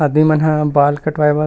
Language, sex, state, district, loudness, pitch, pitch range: Chhattisgarhi, male, Chhattisgarh, Rajnandgaon, -14 LUFS, 150 Hz, 150-155 Hz